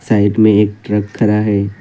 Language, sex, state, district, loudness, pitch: Hindi, male, Assam, Kamrup Metropolitan, -13 LUFS, 105 Hz